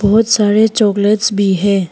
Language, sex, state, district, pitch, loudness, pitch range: Hindi, female, Arunachal Pradesh, Papum Pare, 205 Hz, -12 LUFS, 200-215 Hz